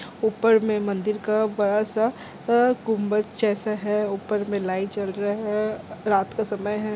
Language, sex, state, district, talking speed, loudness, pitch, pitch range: Hindi, female, Chhattisgarh, Rajnandgaon, 165 wpm, -24 LUFS, 210 Hz, 205-220 Hz